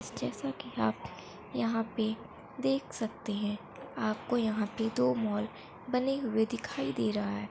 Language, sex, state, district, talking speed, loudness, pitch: Hindi, female, Bihar, Muzaffarpur, 150 wpm, -33 LUFS, 215 Hz